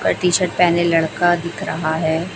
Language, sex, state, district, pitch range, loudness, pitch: Hindi, female, Chhattisgarh, Raipur, 160-180 Hz, -18 LUFS, 170 Hz